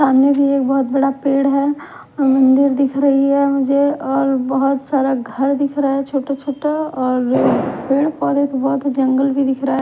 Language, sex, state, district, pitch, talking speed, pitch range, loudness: Hindi, female, Himachal Pradesh, Shimla, 275 Hz, 190 wpm, 270-280 Hz, -16 LUFS